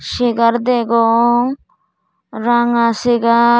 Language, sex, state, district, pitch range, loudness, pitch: Chakma, female, Tripura, Dhalai, 230-240 Hz, -14 LUFS, 235 Hz